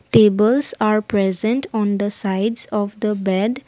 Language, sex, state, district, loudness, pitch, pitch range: English, female, Assam, Kamrup Metropolitan, -18 LUFS, 210 Hz, 205-220 Hz